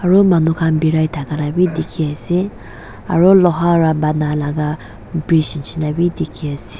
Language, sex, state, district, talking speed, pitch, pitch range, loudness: Nagamese, female, Nagaland, Dimapur, 160 wpm, 155 Hz, 150-170 Hz, -16 LUFS